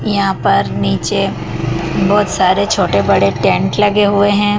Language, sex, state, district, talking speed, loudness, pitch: Hindi, female, Madhya Pradesh, Dhar, 145 wpm, -14 LUFS, 195 Hz